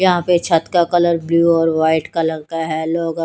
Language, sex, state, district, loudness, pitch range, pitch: Hindi, female, Haryana, Charkhi Dadri, -16 LUFS, 160-175 Hz, 165 Hz